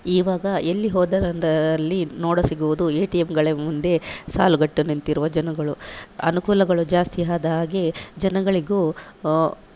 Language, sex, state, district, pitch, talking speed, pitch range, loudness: Kannada, female, Karnataka, Dakshina Kannada, 170 Hz, 100 wpm, 155-180 Hz, -21 LUFS